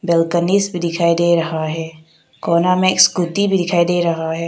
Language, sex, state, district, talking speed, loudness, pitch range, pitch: Hindi, female, Arunachal Pradesh, Papum Pare, 200 wpm, -16 LUFS, 165-180 Hz, 170 Hz